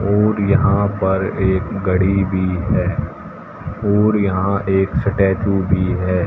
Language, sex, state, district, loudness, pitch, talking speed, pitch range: Hindi, male, Haryana, Jhajjar, -17 LUFS, 95 Hz, 125 wpm, 95-100 Hz